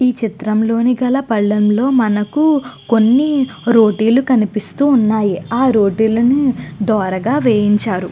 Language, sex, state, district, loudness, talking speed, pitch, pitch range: Telugu, female, Andhra Pradesh, Guntur, -14 LUFS, 105 wpm, 225 Hz, 210-255 Hz